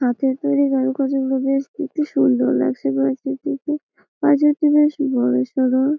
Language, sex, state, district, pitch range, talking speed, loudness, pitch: Bengali, female, West Bengal, Malda, 245-295 Hz, 130 wpm, -19 LUFS, 270 Hz